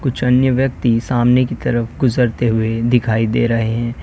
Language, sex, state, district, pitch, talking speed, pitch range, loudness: Hindi, male, Uttar Pradesh, Lalitpur, 120 Hz, 180 wpm, 115-125 Hz, -16 LUFS